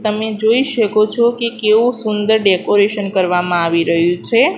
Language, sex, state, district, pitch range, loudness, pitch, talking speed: Gujarati, female, Gujarat, Gandhinagar, 185-225 Hz, -15 LUFS, 215 Hz, 155 wpm